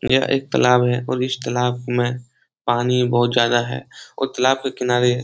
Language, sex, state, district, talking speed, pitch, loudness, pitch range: Hindi, male, Bihar, Jahanabad, 195 wpm, 125 Hz, -19 LUFS, 120-130 Hz